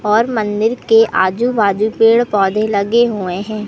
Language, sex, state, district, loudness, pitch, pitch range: Hindi, male, Madhya Pradesh, Katni, -14 LUFS, 215 Hz, 205-225 Hz